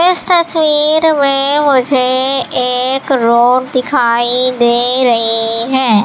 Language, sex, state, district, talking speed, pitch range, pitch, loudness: Hindi, female, Madhya Pradesh, Katni, 100 wpm, 240-285 Hz, 255 Hz, -11 LUFS